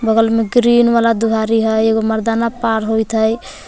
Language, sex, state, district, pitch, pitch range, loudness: Magahi, female, Jharkhand, Palamu, 225 Hz, 220-230 Hz, -14 LUFS